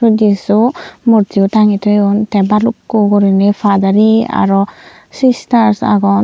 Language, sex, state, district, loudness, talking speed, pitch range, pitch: Chakma, female, Tripura, Unakoti, -11 LUFS, 125 wpm, 200-220 Hz, 210 Hz